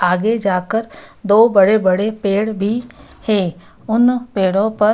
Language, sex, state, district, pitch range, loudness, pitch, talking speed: Hindi, female, Bihar, Samastipur, 195-225 Hz, -16 LUFS, 210 Hz, 135 wpm